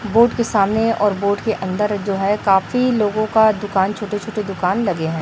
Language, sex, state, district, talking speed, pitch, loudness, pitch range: Hindi, female, Chhattisgarh, Raipur, 205 wpm, 210 Hz, -18 LUFS, 195-220 Hz